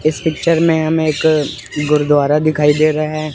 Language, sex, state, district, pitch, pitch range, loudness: Hindi, male, Chandigarh, Chandigarh, 155 Hz, 150-160 Hz, -14 LUFS